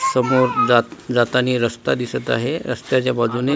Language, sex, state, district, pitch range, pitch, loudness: Marathi, male, Maharashtra, Washim, 120-130 Hz, 125 Hz, -19 LUFS